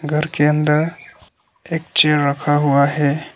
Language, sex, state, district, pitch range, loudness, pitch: Hindi, male, Arunachal Pradesh, Lower Dibang Valley, 145-155 Hz, -17 LUFS, 150 Hz